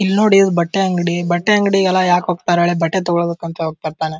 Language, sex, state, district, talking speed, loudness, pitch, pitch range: Kannada, male, Karnataka, Dharwad, 200 wpm, -16 LUFS, 175 Hz, 170-190 Hz